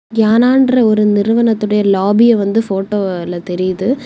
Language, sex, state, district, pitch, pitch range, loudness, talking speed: Tamil, female, Tamil Nadu, Kanyakumari, 210 Hz, 195-230 Hz, -13 LUFS, 105 wpm